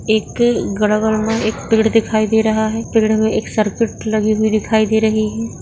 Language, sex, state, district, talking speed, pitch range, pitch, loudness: Hindi, female, Uttarakhand, Tehri Garhwal, 180 wpm, 215-220 Hz, 220 Hz, -16 LUFS